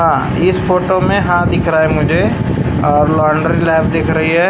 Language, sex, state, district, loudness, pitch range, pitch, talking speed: Hindi, male, Maharashtra, Gondia, -13 LUFS, 160-175 Hz, 165 Hz, 160 wpm